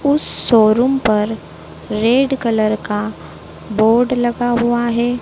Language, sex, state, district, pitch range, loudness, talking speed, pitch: Hindi, female, Madhya Pradesh, Dhar, 215-245 Hz, -16 LUFS, 115 wpm, 235 Hz